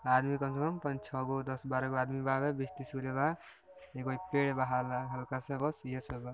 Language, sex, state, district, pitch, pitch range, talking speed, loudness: Bhojpuri, male, Bihar, Gopalganj, 135 Hz, 130-140 Hz, 255 wpm, -35 LUFS